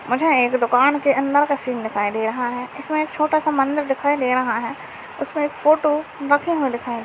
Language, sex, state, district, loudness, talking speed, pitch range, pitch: Hindi, male, Maharashtra, Dhule, -20 LUFS, 220 wpm, 250-300 Hz, 280 Hz